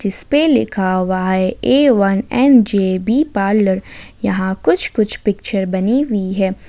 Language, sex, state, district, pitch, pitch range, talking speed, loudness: Hindi, female, Jharkhand, Ranchi, 200 Hz, 190-245 Hz, 150 wpm, -15 LUFS